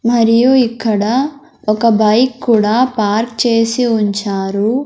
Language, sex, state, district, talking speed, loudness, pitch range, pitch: Telugu, male, Andhra Pradesh, Sri Satya Sai, 100 wpm, -13 LUFS, 215-250 Hz, 230 Hz